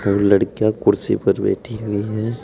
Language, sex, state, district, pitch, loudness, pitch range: Hindi, male, Uttar Pradesh, Saharanpur, 110 Hz, -19 LUFS, 100-110 Hz